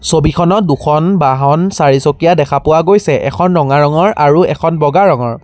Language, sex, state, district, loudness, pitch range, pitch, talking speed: Assamese, male, Assam, Sonitpur, -10 LUFS, 145-175 Hz, 155 Hz, 155 wpm